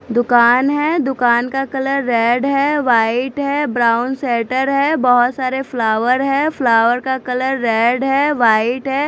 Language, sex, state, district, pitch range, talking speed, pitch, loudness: Hindi, female, Chandigarh, Chandigarh, 240-275 Hz, 150 wpm, 255 Hz, -15 LUFS